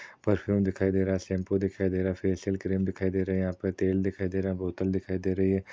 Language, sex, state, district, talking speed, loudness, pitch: Hindi, male, Maharashtra, Chandrapur, 295 wpm, -29 LUFS, 95 Hz